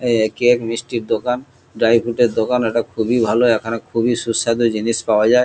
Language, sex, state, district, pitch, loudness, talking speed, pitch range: Bengali, male, West Bengal, Kolkata, 115 Hz, -17 LUFS, 175 wpm, 115-120 Hz